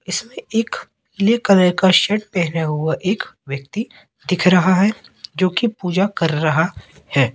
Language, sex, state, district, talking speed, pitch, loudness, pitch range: Hindi, male, Madhya Pradesh, Katni, 155 wpm, 185 Hz, -18 LUFS, 160-205 Hz